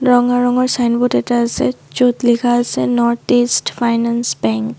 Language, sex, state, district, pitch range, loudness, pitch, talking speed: Assamese, female, Assam, Sonitpur, 235-245 Hz, -15 LUFS, 240 Hz, 165 wpm